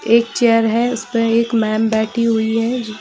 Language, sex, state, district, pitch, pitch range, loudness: Hindi, female, Bihar, Jahanabad, 230 Hz, 220-235 Hz, -16 LUFS